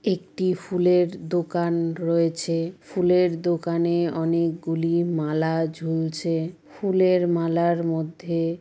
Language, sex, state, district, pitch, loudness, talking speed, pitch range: Bengali, female, West Bengal, Jalpaiguri, 170 Hz, -24 LUFS, 95 wpm, 165-180 Hz